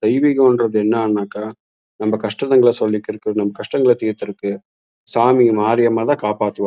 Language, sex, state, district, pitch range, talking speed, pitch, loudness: Tamil, male, Karnataka, Chamarajanagar, 105-120 Hz, 110 wpm, 110 Hz, -17 LUFS